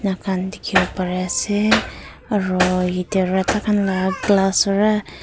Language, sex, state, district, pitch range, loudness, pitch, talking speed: Nagamese, female, Nagaland, Kohima, 185-205 Hz, -19 LUFS, 190 Hz, 135 wpm